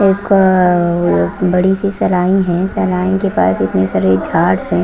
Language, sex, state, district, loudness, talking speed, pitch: Hindi, female, Chandigarh, Chandigarh, -13 LUFS, 160 wpm, 180 Hz